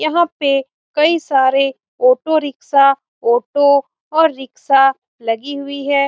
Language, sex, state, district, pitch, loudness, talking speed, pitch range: Hindi, female, Bihar, Saran, 280 Hz, -15 LUFS, 120 wpm, 270-295 Hz